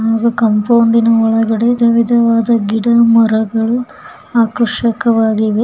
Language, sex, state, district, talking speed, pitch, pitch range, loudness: Kannada, female, Karnataka, Bellary, 75 wpm, 230 Hz, 225-235 Hz, -12 LUFS